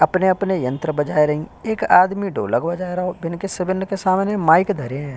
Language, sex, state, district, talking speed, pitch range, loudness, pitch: Hindi, male, Uttar Pradesh, Hamirpur, 210 wpm, 150-195 Hz, -19 LUFS, 180 Hz